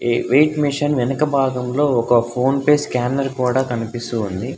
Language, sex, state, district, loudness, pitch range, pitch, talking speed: Telugu, male, Telangana, Hyderabad, -18 LUFS, 120-140 Hz, 130 Hz, 120 wpm